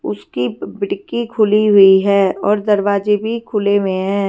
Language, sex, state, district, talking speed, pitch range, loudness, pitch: Hindi, female, Punjab, Fazilka, 140 wpm, 200-215 Hz, -15 LUFS, 205 Hz